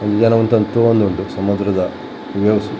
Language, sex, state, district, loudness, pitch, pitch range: Tulu, male, Karnataka, Dakshina Kannada, -16 LUFS, 105 Hz, 100-115 Hz